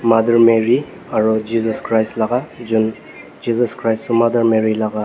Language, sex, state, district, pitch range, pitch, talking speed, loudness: Nagamese, male, Nagaland, Dimapur, 110-115 Hz, 115 Hz, 155 wpm, -17 LUFS